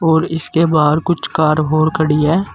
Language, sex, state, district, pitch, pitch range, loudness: Hindi, male, Uttar Pradesh, Saharanpur, 160 Hz, 155-165 Hz, -15 LUFS